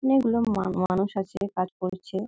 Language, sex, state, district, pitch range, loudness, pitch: Bengali, female, West Bengal, Malda, 185-205 Hz, -26 LUFS, 190 Hz